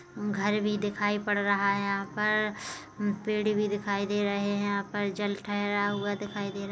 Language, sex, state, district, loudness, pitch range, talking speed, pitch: Hindi, female, Chhattisgarh, Kabirdham, -29 LUFS, 200-210 Hz, 205 wpm, 205 Hz